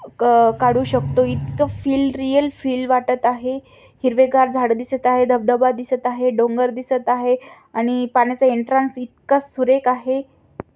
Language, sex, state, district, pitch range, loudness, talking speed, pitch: Marathi, female, Maharashtra, Aurangabad, 245-260 Hz, -18 LUFS, 140 wpm, 250 Hz